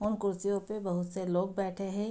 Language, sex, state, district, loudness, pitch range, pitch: Hindi, female, Bihar, Begusarai, -33 LUFS, 185-205 Hz, 195 Hz